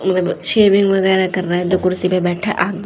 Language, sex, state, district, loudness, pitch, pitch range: Hindi, female, Haryana, Rohtak, -16 LUFS, 185 Hz, 180-195 Hz